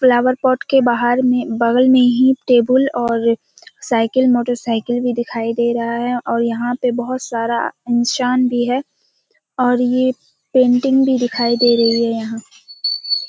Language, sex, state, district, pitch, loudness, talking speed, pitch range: Hindi, female, Bihar, Kishanganj, 245 Hz, -16 LUFS, 155 wpm, 235-255 Hz